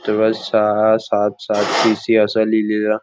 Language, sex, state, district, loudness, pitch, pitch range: Marathi, male, Maharashtra, Nagpur, -17 LUFS, 110 Hz, 105-110 Hz